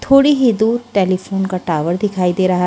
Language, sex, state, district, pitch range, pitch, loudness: Hindi, female, Haryana, Charkhi Dadri, 180-230 Hz, 190 Hz, -16 LUFS